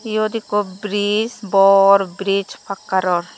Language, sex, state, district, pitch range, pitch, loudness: Chakma, female, Tripura, Dhalai, 195-210 Hz, 200 Hz, -17 LUFS